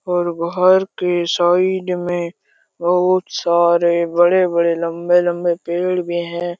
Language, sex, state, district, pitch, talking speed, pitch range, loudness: Hindi, male, Jharkhand, Jamtara, 175 Hz, 125 wpm, 170-180 Hz, -17 LUFS